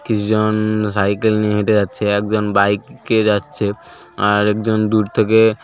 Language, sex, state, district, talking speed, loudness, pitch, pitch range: Bengali, male, West Bengal, Paschim Medinipur, 150 wpm, -16 LUFS, 105 Hz, 105-110 Hz